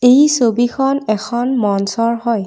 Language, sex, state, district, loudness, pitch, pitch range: Assamese, female, Assam, Kamrup Metropolitan, -15 LUFS, 235 Hz, 220-255 Hz